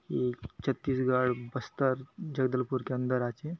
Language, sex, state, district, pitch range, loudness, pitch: Halbi, male, Chhattisgarh, Bastar, 125-135 Hz, -32 LUFS, 130 Hz